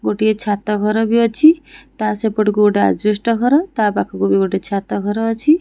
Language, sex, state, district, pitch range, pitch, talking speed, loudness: Odia, female, Odisha, Khordha, 205-230 Hz, 215 Hz, 180 wpm, -16 LUFS